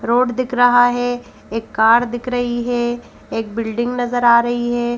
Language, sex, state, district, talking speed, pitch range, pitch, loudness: Hindi, female, Madhya Pradesh, Bhopal, 180 wpm, 235-245 Hz, 240 Hz, -17 LUFS